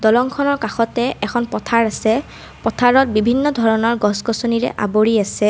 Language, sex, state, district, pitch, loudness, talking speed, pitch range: Assamese, female, Assam, Kamrup Metropolitan, 230 Hz, -17 LUFS, 130 wpm, 220-245 Hz